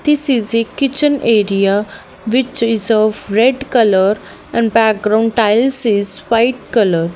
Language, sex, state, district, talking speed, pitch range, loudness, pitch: English, female, Haryana, Jhajjar, 135 wpm, 205-245 Hz, -14 LUFS, 225 Hz